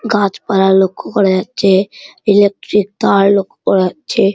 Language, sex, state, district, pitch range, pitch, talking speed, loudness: Bengali, male, West Bengal, Malda, 190-205 Hz, 195 Hz, 125 wpm, -13 LUFS